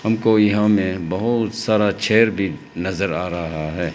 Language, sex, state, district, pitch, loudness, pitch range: Hindi, male, Arunachal Pradesh, Lower Dibang Valley, 105 Hz, -19 LUFS, 90-110 Hz